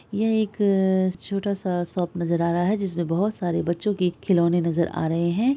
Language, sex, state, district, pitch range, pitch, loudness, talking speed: Hindi, female, Bihar, Araria, 170-200 Hz, 180 Hz, -23 LUFS, 215 wpm